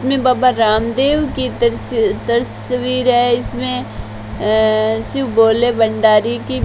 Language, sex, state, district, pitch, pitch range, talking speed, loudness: Hindi, female, Rajasthan, Bikaner, 235 Hz, 215-255 Hz, 125 wpm, -15 LUFS